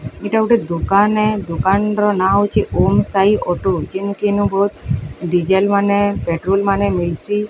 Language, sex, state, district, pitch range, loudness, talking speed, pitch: Odia, female, Odisha, Sambalpur, 180-205 Hz, -16 LUFS, 120 wpm, 200 Hz